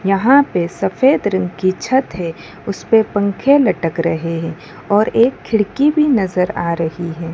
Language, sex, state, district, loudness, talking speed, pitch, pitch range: Hindi, female, Gujarat, Valsad, -16 LUFS, 165 wpm, 195 Hz, 170-235 Hz